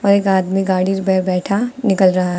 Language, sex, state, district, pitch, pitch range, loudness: Hindi, female, Uttar Pradesh, Lucknow, 190 Hz, 185-200 Hz, -16 LUFS